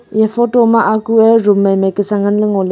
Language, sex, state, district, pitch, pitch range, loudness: Wancho, female, Arunachal Pradesh, Longding, 215 Hz, 205-230 Hz, -12 LUFS